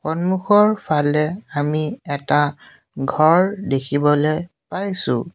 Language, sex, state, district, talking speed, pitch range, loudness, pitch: Assamese, male, Assam, Sonitpur, 80 wpm, 145-185 Hz, -19 LUFS, 155 Hz